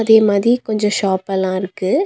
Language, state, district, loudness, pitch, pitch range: Tamil, Tamil Nadu, Nilgiris, -16 LUFS, 205 Hz, 190-220 Hz